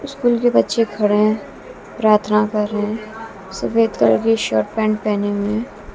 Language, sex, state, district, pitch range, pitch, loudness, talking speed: Hindi, female, Bihar, West Champaran, 205-225 Hz, 210 Hz, -18 LUFS, 170 wpm